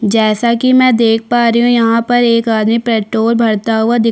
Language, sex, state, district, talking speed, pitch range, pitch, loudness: Hindi, female, Chhattisgarh, Korba, 220 wpm, 225-235 Hz, 230 Hz, -12 LUFS